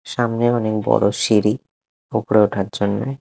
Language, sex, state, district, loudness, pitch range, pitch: Bengali, male, Odisha, Khordha, -19 LUFS, 105-120 Hz, 110 Hz